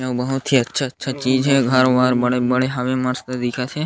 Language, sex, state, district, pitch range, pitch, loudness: Chhattisgarhi, male, Chhattisgarh, Sarguja, 125-135 Hz, 130 Hz, -19 LUFS